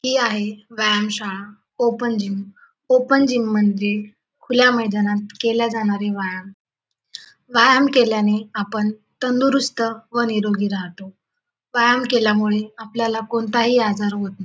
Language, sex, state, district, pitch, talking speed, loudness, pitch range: Marathi, female, Maharashtra, Dhule, 220 Hz, 115 wpm, -19 LUFS, 205-245 Hz